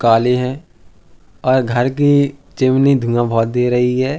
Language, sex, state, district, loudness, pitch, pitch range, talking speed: Hindi, male, Uttar Pradesh, Hamirpur, -15 LUFS, 125 Hz, 115-135 Hz, 155 wpm